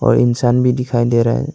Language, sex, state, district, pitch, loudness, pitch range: Hindi, male, Arunachal Pradesh, Longding, 120 Hz, -15 LUFS, 120-125 Hz